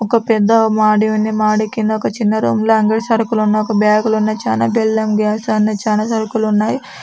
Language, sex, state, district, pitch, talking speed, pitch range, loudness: Telugu, female, Andhra Pradesh, Anantapur, 215 Hz, 155 wpm, 215-220 Hz, -15 LUFS